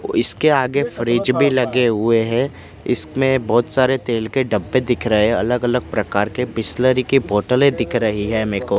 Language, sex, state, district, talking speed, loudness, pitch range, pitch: Hindi, male, Gujarat, Gandhinagar, 185 wpm, -18 LUFS, 110-130 Hz, 120 Hz